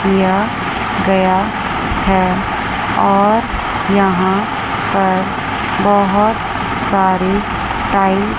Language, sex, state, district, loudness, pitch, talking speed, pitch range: Hindi, female, Chandigarh, Chandigarh, -15 LUFS, 195 Hz, 70 wpm, 190-205 Hz